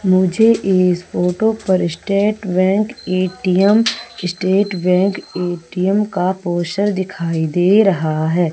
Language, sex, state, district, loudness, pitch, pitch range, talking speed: Hindi, female, Madhya Pradesh, Umaria, -16 LUFS, 185 Hz, 180-200 Hz, 110 wpm